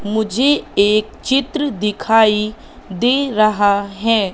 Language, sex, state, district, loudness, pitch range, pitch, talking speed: Hindi, female, Madhya Pradesh, Katni, -16 LUFS, 205-245 Hz, 215 Hz, 95 wpm